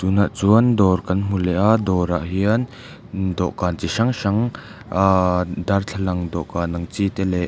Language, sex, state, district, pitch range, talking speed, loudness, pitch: Mizo, male, Mizoram, Aizawl, 90-100 Hz, 160 wpm, -20 LUFS, 95 Hz